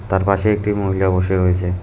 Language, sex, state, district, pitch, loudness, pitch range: Bengali, male, West Bengal, Cooch Behar, 95 Hz, -18 LUFS, 90-100 Hz